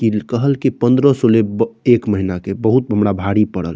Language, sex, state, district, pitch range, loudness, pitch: Maithili, male, Bihar, Saharsa, 100-120 Hz, -16 LUFS, 110 Hz